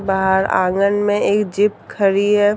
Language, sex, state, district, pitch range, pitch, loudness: Hindi, female, Jharkhand, Deoghar, 195-205 Hz, 200 Hz, -17 LUFS